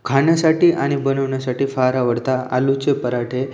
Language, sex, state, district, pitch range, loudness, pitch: Marathi, male, Maharashtra, Aurangabad, 125-135 Hz, -18 LUFS, 135 Hz